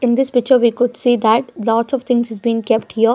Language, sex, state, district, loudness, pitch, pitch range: English, female, Haryana, Jhajjar, -16 LUFS, 240 Hz, 225-250 Hz